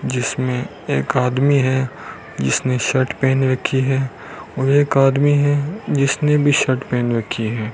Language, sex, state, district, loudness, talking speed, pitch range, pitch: Hindi, male, Rajasthan, Bikaner, -18 LUFS, 145 wpm, 125-140 Hz, 130 Hz